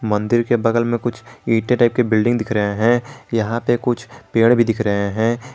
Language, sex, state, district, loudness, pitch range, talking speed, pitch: Hindi, male, Jharkhand, Garhwa, -18 LUFS, 110-120 Hz, 215 wpm, 115 Hz